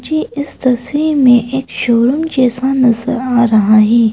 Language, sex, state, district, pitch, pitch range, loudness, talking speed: Hindi, female, Arunachal Pradesh, Papum Pare, 255 Hz, 235-270 Hz, -12 LUFS, 160 wpm